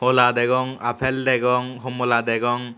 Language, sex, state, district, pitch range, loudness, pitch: Chakma, male, Tripura, Unakoti, 120-130 Hz, -20 LUFS, 125 Hz